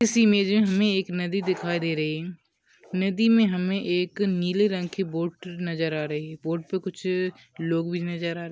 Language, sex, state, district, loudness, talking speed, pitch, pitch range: Hindi, male, Maharashtra, Aurangabad, -25 LUFS, 220 wpm, 180 Hz, 165-195 Hz